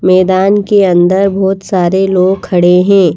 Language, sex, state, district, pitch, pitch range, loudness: Hindi, female, Madhya Pradesh, Bhopal, 190 Hz, 185-195 Hz, -10 LUFS